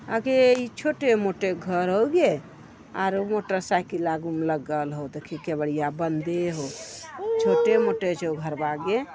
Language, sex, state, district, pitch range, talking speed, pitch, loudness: Magahi, female, Bihar, Jamui, 155-230 Hz, 185 wpm, 180 Hz, -25 LUFS